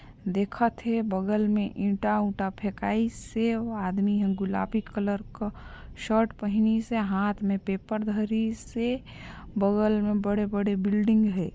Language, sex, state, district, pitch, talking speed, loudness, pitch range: Chhattisgarhi, female, Chhattisgarh, Sarguja, 210 Hz, 125 wpm, -27 LUFS, 200-220 Hz